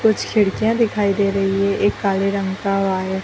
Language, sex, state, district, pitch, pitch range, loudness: Hindi, female, Bihar, Sitamarhi, 200 Hz, 195-205 Hz, -19 LUFS